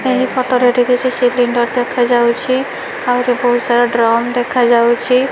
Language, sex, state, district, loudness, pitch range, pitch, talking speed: Odia, female, Odisha, Malkangiri, -14 LUFS, 240-250 Hz, 245 Hz, 160 wpm